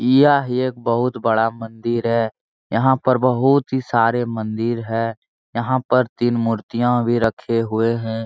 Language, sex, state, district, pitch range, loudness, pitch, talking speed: Hindi, male, Bihar, Jahanabad, 115-125 Hz, -19 LUFS, 120 Hz, 150 wpm